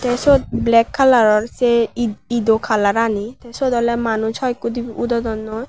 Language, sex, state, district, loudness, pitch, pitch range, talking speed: Chakma, female, Tripura, West Tripura, -17 LUFS, 235 Hz, 220-240 Hz, 160 wpm